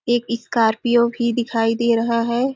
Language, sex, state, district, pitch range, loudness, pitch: Hindi, female, Chhattisgarh, Sarguja, 230-240 Hz, -19 LUFS, 235 Hz